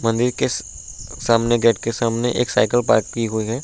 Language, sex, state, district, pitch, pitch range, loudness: Hindi, male, Uttar Pradesh, Budaun, 115 Hz, 110-120 Hz, -19 LUFS